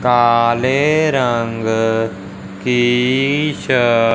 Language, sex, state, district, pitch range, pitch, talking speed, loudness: Hindi, male, Punjab, Fazilka, 115-130 Hz, 120 Hz, 70 wpm, -15 LUFS